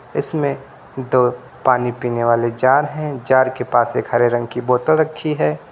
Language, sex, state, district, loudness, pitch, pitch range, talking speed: Hindi, male, Uttar Pradesh, Lucknow, -18 LUFS, 125 Hz, 120-140 Hz, 180 wpm